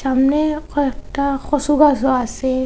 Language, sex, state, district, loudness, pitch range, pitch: Bengali, female, Assam, Hailakandi, -17 LUFS, 260-295 Hz, 280 Hz